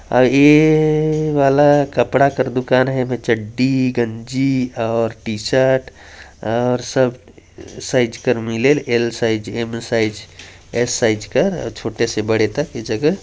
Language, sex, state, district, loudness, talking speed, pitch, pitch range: Chhattisgarhi, male, Chhattisgarh, Jashpur, -17 LUFS, 150 wpm, 120 Hz, 115-135 Hz